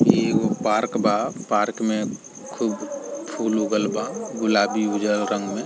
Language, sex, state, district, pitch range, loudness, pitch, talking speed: Bhojpuri, male, Bihar, East Champaran, 105-110 Hz, -23 LUFS, 105 Hz, 150 wpm